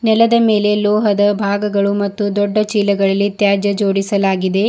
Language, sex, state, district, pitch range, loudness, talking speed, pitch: Kannada, female, Karnataka, Bidar, 200-210 Hz, -15 LUFS, 115 wpm, 205 Hz